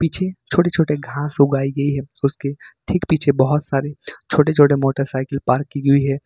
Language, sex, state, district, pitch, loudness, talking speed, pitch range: Hindi, male, Jharkhand, Ranchi, 140 Hz, -18 LUFS, 190 wpm, 140-150 Hz